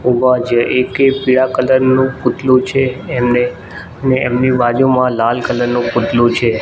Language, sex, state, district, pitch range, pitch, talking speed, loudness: Gujarati, male, Gujarat, Gandhinagar, 120-130 Hz, 125 Hz, 155 wpm, -13 LUFS